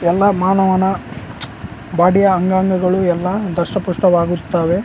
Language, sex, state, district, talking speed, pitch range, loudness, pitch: Kannada, male, Karnataka, Raichur, 85 wpm, 170-190 Hz, -16 LUFS, 180 Hz